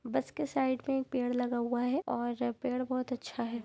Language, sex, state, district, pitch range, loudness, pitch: Hindi, female, Jharkhand, Jamtara, 240-255 Hz, -34 LUFS, 245 Hz